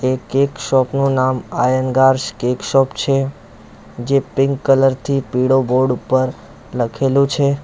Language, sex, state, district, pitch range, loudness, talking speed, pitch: Gujarati, male, Gujarat, Valsad, 125-135 Hz, -17 LUFS, 135 wpm, 130 Hz